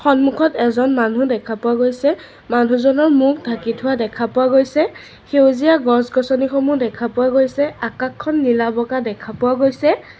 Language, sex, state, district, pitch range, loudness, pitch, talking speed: Assamese, female, Assam, Sonitpur, 235-275 Hz, -17 LUFS, 255 Hz, 155 wpm